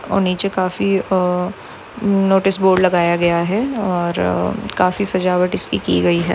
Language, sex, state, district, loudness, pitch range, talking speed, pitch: Hindi, female, Uttar Pradesh, Jyotiba Phule Nagar, -17 LUFS, 175-195 Hz, 170 wpm, 185 Hz